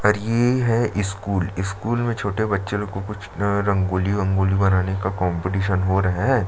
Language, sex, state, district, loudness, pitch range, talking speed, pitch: Hindi, male, Chhattisgarh, Sukma, -22 LUFS, 95-105 Hz, 165 wpm, 100 Hz